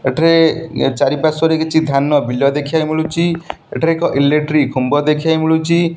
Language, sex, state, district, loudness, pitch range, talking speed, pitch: Odia, male, Odisha, Nuapada, -15 LUFS, 145-160 Hz, 150 wpm, 155 Hz